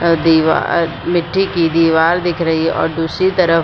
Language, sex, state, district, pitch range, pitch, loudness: Hindi, female, Bihar, Supaul, 165-175 Hz, 165 Hz, -14 LUFS